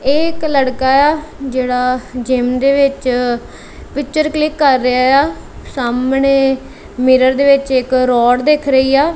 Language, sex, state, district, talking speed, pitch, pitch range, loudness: Punjabi, female, Punjab, Kapurthala, 145 wpm, 265 Hz, 255-280 Hz, -14 LUFS